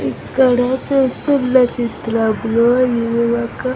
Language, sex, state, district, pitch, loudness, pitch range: Telugu, female, Andhra Pradesh, Sri Satya Sai, 240 Hz, -16 LUFS, 230-255 Hz